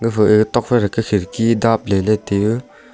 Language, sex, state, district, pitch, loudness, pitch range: Wancho, male, Arunachal Pradesh, Longding, 110 Hz, -16 LUFS, 105-115 Hz